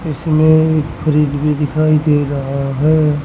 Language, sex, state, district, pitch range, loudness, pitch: Hindi, male, Haryana, Rohtak, 145-155 Hz, -14 LUFS, 150 Hz